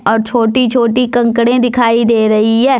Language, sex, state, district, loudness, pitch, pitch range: Hindi, female, Jharkhand, Deoghar, -11 LUFS, 235 Hz, 225-245 Hz